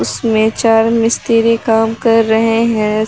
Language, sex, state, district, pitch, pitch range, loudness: Hindi, female, Jharkhand, Garhwa, 225 Hz, 220-230 Hz, -12 LUFS